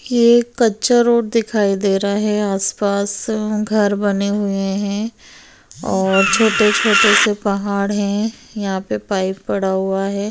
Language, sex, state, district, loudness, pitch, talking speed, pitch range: Hindi, female, Bihar, Darbhanga, -17 LUFS, 205 Hz, 135 wpm, 195-220 Hz